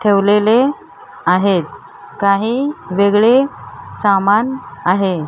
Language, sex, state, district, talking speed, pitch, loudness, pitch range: Marathi, female, Maharashtra, Mumbai Suburban, 70 wpm, 200 Hz, -15 LUFS, 195-235 Hz